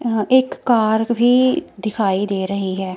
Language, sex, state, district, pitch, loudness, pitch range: Hindi, female, Himachal Pradesh, Shimla, 220 Hz, -17 LUFS, 195-245 Hz